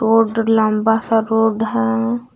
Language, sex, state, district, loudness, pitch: Hindi, female, Jharkhand, Palamu, -16 LUFS, 220 Hz